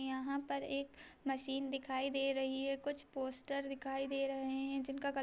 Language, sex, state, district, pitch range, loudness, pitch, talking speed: Hindi, female, Bihar, Saharsa, 270-275 Hz, -40 LUFS, 275 Hz, 195 wpm